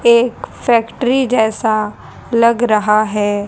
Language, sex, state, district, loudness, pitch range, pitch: Hindi, female, Haryana, Rohtak, -15 LUFS, 215-235 Hz, 225 Hz